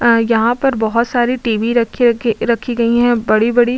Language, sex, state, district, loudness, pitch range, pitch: Hindi, female, Uttar Pradesh, Budaun, -15 LUFS, 230-240 Hz, 235 Hz